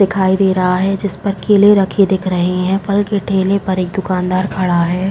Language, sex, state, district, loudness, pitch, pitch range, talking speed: Hindi, female, Uttar Pradesh, Jalaun, -14 LUFS, 190 Hz, 185-200 Hz, 225 wpm